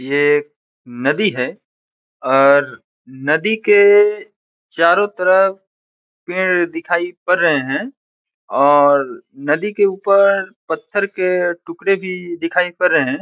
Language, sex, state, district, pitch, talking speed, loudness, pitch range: Hindi, male, Bihar, Saran, 180 Hz, 120 wpm, -16 LUFS, 145-200 Hz